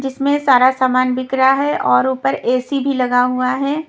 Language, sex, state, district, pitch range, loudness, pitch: Hindi, female, Punjab, Kapurthala, 250-275 Hz, -15 LUFS, 255 Hz